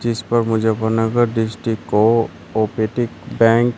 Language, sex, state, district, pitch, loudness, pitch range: Hindi, male, Uttar Pradesh, Shamli, 115 Hz, -18 LUFS, 110-115 Hz